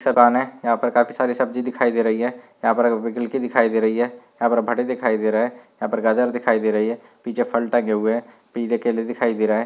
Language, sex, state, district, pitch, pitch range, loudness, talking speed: Hindi, male, Uttar Pradesh, Gorakhpur, 120 Hz, 115-120 Hz, -21 LUFS, 255 wpm